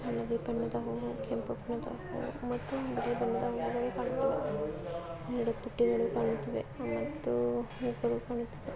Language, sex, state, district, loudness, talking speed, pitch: Kannada, female, Karnataka, Mysore, -35 LUFS, 70 wpm, 230 Hz